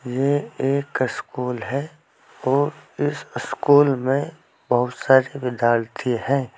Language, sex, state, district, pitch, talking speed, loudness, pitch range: Hindi, male, Uttar Pradesh, Saharanpur, 135 Hz, 110 wpm, -22 LUFS, 125-140 Hz